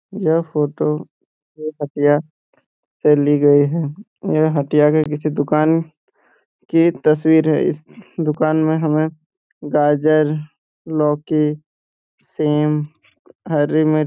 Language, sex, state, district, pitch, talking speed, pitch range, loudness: Hindi, male, Jharkhand, Jamtara, 155 Hz, 110 wpm, 150-155 Hz, -17 LUFS